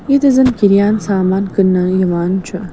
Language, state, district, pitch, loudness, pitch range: Kashmiri, Punjab, Kapurthala, 195 Hz, -13 LUFS, 185-210 Hz